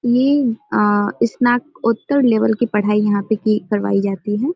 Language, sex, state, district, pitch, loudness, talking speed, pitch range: Hindi, female, Bihar, Samastipur, 220 Hz, -17 LUFS, 160 wpm, 210-245 Hz